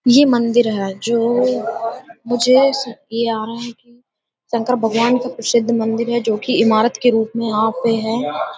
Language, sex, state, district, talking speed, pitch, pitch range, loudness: Hindi, female, Uttar Pradesh, Hamirpur, 135 wpm, 235 Hz, 225-245 Hz, -17 LUFS